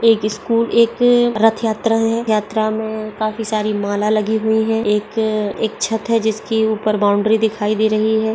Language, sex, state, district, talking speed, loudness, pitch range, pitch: Hindi, female, Uttar Pradesh, Etah, 180 wpm, -17 LUFS, 215-225 Hz, 220 Hz